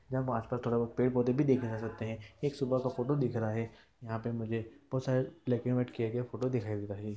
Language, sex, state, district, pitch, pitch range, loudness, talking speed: Hindi, male, Bihar, East Champaran, 120 Hz, 115-130 Hz, -34 LUFS, 260 wpm